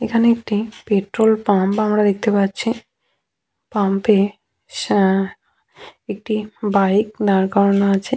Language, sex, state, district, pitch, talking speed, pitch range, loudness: Bengali, female, West Bengal, Malda, 210 Hz, 105 wpm, 200-220 Hz, -18 LUFS